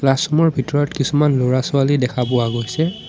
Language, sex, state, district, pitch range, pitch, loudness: Assamese, male, Assam, Sonitpur, 125-150 Hz, 140 Hz, -18 LUFS